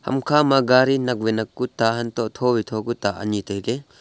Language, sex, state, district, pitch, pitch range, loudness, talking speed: Wancho, male, Arunachal Pradesh, Longding, 120 Hz, 110-130 Hz, -21 LUFS, 285 wpm